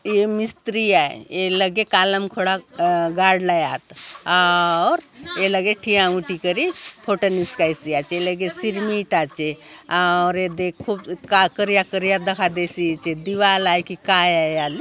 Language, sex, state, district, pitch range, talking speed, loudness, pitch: Halbi, female, Chhattisgarh, Bastar, 175-200 Hz, 135 wpm, -19 LUFS, 185 Hz